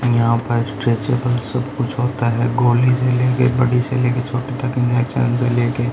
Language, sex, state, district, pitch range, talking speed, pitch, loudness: Hindi, male, Haryana, Rohtak, 120-125 Hz, 180 wpm, 125 Hz, -18 LUFS